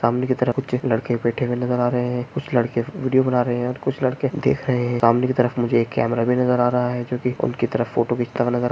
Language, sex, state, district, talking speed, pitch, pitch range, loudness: Hindi, male, Bihar, Jamui, 300 wpm, 125 Hz, 120-125 Hz, -21 LUFS